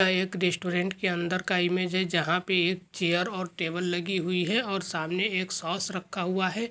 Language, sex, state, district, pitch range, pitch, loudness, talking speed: Hindi, male, Rajasthan, Churu, 175-190 Hz, 185 Hz, -28 LUFS, 215 wpm